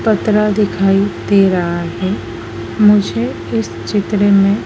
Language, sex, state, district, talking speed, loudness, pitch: Hindi, female, Madhya Pradesh, Dhar, 115 wpm, -14 LUFS, 190 Hz